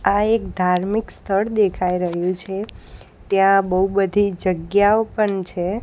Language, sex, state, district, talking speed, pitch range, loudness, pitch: Gujarati, female, Gujarat, Gandhinagar, 135 wpm, 185-205 Hz, -19 LUFS, 195 Hz